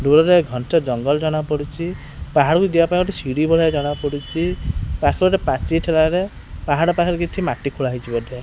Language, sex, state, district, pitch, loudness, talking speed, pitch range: Odia, male, Odisha, Khordha, 160 Hz, -19 LUFS, 190 wpm, 145-175 Hz